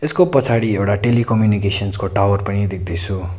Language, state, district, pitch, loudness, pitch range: Nepali, West Bengal, Darjeeling, 100 Hz, -17 LUFS, 100-115 Hz